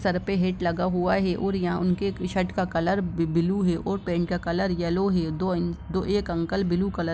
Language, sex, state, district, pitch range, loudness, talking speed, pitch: Hindi, male, Jharkhand, Jamtara, 175-190 Hz, -26 LUFS, 210 wpm, 180 Hz